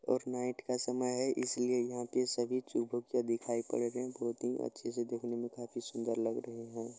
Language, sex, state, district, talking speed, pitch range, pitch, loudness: Maithili, male, Bihar, Supaul, 205 wpm, 120-125 Hz, 120 Hz, -37 LUFS